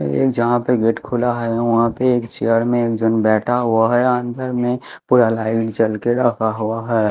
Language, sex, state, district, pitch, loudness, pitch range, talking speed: Hindi, male, Chhattisgarh, Raipur, 115 Hz, -18 LUFS, 115-120 Hz, 210 wpm